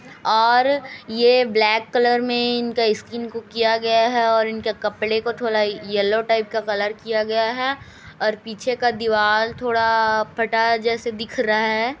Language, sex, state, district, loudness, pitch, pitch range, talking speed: Hindi, female, Chhattisgarh, Kabirdham, -20 LUFS, 225 Hz, 220-235 Hz, 165 wpm